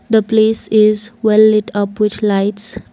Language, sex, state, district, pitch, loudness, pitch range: English, female, Assam, Kamrup Metropolitan, 215 Hz, -14 LUFS, 210-220 Hz